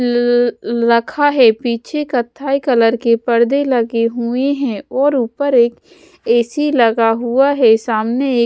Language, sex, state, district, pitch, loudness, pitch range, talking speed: Hindi, female, Odisha, Sambalpur, 240 Hz, -15 LUFS, 235-270 Hz, 135 wpm